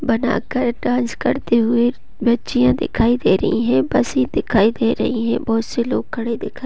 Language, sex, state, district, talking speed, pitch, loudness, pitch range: Hindi, female, Bihar, Gopalganj, 180 wpm, 235 Hz, -18 LUFS, 225-240 Hz